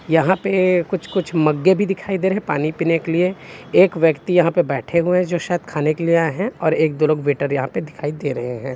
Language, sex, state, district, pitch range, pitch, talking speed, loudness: Hindi, male, Chhattisgarh, Bilaspur, 150-185 Hz, 165 Hz, 260 wpm, -19 LUFS